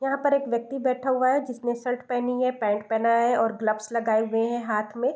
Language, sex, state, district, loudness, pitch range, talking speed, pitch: Hindi, female, Bihar, East Champaran, -25 LUFS, 225-255 Hz, 245 wpm, 240 Hz